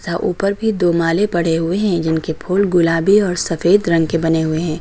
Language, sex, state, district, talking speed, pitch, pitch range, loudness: Hindi, female, Uttar Pradesh, Lucknow, 210 wpm, 170 Hz, 165-195 Hz, -16 LUFS